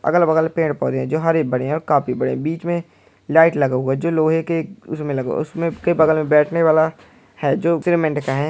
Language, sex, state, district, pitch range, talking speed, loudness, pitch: Hindi, female, Uttar Pradesh, Budaun, 150-165 Hz, 245 wpm, -18 LUFS, 160 Hz